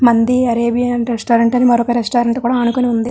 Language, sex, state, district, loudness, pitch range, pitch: Telugu, female, Andhra Pradesh, Srikakulam, -14 LUFS, 235-245 Hz, 240 Hz